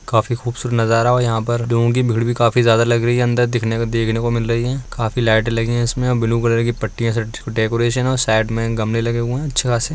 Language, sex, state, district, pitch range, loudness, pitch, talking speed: Hindi, male, Uttar Pradesh, Etah, 115-120 Hz, -18 LUFS, 115 Hz, 265 wpm